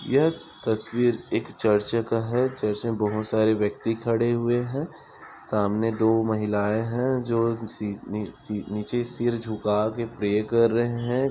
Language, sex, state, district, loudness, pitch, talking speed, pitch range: Hindi, male, Chhattisgarh, Bilaspur, -25 LUFS, 115 Hz, 145 wpm, 105-120 Hz